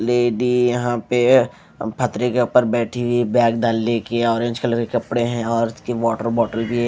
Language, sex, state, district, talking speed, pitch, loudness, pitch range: Hindi, male, Odisha, Malkangiri, 200 wpm, 120 Hz, -19 LUFS, 115-120 Hz